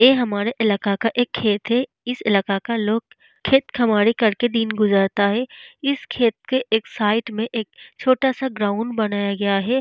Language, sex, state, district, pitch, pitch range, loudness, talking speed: Hindi, female, Bihar, Vaishali, 225 Hz, 205-245 Hz, -20 LUFS, 185 wpm